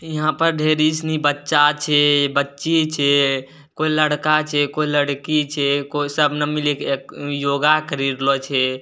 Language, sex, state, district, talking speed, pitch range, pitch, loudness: Maithili, male, Bihar, Bhagalpur, 150 wpm, 140-155 Hz, 145 Hz, -18 LUFS